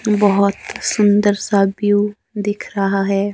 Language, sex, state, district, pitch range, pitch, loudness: Hindi, male, Himachal Pradesh, Shimla, 195-205 Hz, 205 Hz, -17 LUFS